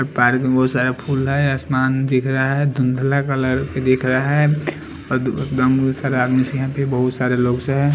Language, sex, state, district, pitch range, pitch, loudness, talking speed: Hindi, male, Delhi, New Delhi, 130-135 Hz, 130 Hz, -18 LUFS, 210 wpm